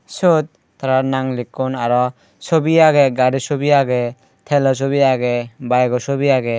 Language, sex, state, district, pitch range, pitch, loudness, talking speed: Chakma, female, Tripura, Dhalai, 125-140 Hz, 130 Hz, -17 LUFS, 145 wpm